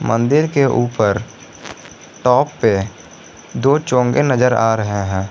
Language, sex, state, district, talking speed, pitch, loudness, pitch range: Hindi, male, Jharkhand, Garhwa, 125 wpm, 120 Hz, -16 LUFS, 105-135 Hz